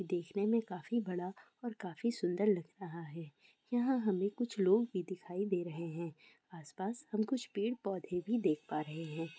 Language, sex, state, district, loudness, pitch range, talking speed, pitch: Hindi, female, Bihar, Kishanganj, -37 LUFS, 175-220 Hz, 180 wpm, 190 Hz